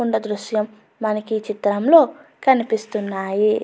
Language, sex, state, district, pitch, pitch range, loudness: Telugu, female, Andhra Pradesh, Anantapur, 215 Hz, 210-225 Hz, -20 LUFS